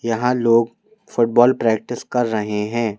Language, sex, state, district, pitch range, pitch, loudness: Hindi, male, Madhya Pradesh, Bhopal, 115-120 Hz, 115 Hz, -18 LUFS